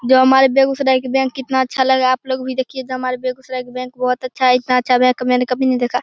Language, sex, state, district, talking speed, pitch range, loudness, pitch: Hindi, male, Bihar, Begusarai, 290 wpm, 255-260 Hz, -16 LUFS, 255 Hz